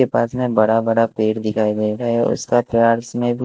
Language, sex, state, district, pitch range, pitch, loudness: Hindi, male, Maharashtra, Washim, 110-120 Hz, 115 Hz, -18 LUFS